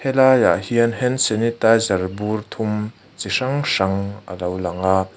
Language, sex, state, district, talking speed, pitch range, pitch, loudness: Mizo, male, Mizoram, Aizawl, 150 wpm, 95-120 Hz, 105 Hz, -19 LUFS